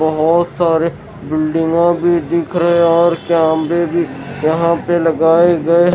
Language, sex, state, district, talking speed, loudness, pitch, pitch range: Hindi, male, Bihar, West Champaran, 150 wpm, -14 LUFS, 170 Hz, 160-170 Hz